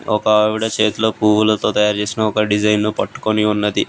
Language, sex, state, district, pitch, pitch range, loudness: Telugu, male, Telangana, Hyderabad, 105 Hz, 105-110 Hz, -16 LUFS